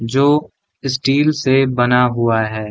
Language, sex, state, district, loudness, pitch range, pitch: Hindi, male, Bihar, Gaya, -15 LUFS, 115-140 Hz, 130 Hz